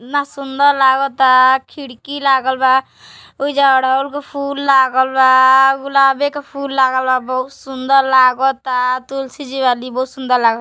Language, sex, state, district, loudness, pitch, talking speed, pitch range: Hindi, female, Uttar Pradesh, Deoria, -14 LUFS, 265 Hz, 165 wpm, 260-275 Hz